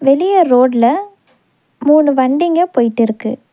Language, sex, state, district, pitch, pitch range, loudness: Tamil, female, Tamil Nadu, Nilgiris, 270 Hz, 245-340 Hz, -13 LUFS